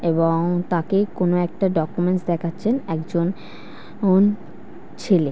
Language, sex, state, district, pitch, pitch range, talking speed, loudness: Bengali, female, West Bengal, North 24 Parganas, 175 Hz, 170-195 Hz, 115 wpm, -21 LUFS